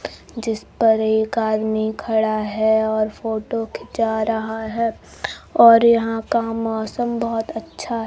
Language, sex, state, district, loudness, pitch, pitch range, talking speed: Hindi, female, Bihar, Kaimur, -20 LUFS, 225 Hz, 220-230 Hz, 135 wpm